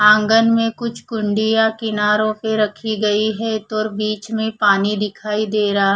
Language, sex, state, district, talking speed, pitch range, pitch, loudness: Hindi, female, Odisha, Khordha, 160 wpm, 210-220 Hz, 215 Hz, -18 LUFS